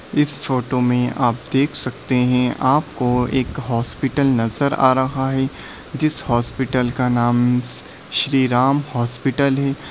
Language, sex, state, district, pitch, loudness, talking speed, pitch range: Hindi, male, Bihar, Bhagalpur, 130 Hz, -19 LUFS, 120 wpm, 125-140 Hz